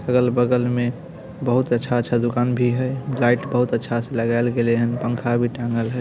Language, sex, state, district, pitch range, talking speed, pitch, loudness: Hindi, male, Bihar, Samastipur, 120-125 Hz, 190 wpm, 120 Hz, -21 LUFS